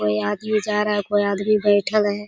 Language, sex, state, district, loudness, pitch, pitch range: Hindi, female, Bihar, Kishanganj, -20 LUFS, 205 Hz, 200-210 Hz